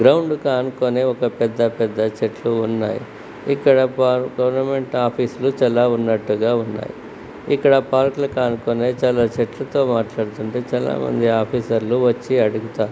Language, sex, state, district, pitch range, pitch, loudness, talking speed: Telugu, male, Andhra Pradesh, Srikakulam, 115-130 Hz, 120 Hz, -19 LUFS, 130 wpm